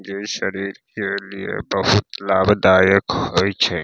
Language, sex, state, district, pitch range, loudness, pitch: Maithili, male, Bihar, Saharsa, 95-100 Hz, -19 LUFS, 100 Hz